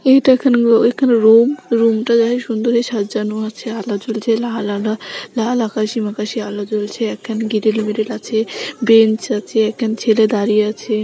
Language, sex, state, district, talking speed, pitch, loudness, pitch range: Bengali, female, West Bengal, North 24 Parganas, 170 wpm, 225 Hz, -16 LUFS, 215-235 Hz